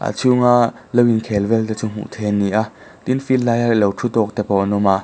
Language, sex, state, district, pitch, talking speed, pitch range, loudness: Mizo, male, Mizoram, Aizawl, 110 Hz, 285 wpm, 105-120 Hz, -17 LUFS